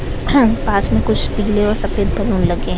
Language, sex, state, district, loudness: Hindi, female, Bihar, Gaya, -16 LUFS